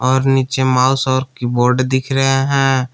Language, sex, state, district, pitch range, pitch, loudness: Hindi, male, Jharkhand, Palamu, 130-135 Hz, 130 Hz, -15 LUFS